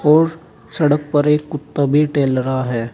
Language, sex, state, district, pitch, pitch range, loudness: Hindi, male, Uttar Pradesh, Saharanpur, 150 Hz, 135-150 Hz, -17 LUFS